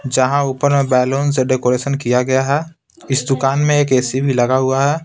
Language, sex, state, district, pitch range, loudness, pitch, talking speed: Hindi, male, Bihar, Patna, 130-140 Hz, -16 LUFS, 135 Hz, 215 wpm